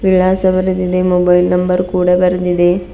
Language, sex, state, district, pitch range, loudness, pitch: Kannada, female, Karnataka, Bidar, 180-185 Hz, -13 LUFS, 180 Hz